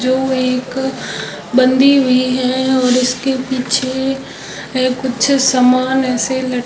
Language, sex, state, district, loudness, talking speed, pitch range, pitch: Hindi, female, Rajasthan, Jaisalmer, -15 LUFS, 110 wpm, 255-265 Hz, 255 Hz